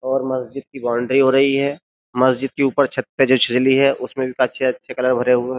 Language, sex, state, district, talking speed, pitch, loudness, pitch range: Hindi, male, Uttar Pradesh, Jyotiba Phule Nagar, 245 wpm, 130 Hz, -18 LUFS, 125-135 Hz